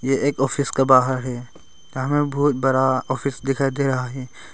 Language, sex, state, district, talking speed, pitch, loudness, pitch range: Hindi, male, Arunachal Pradesh, Longding, 185 wpm, 135 Hz, -21 LUFS, 130-140 Hz